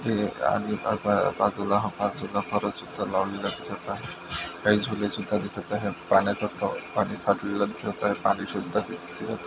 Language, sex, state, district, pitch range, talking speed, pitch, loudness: Marathi, male, Maharashtra, Nagpur, 100-105 Hz, 100 wpm, 105 Hz, -27 LUFS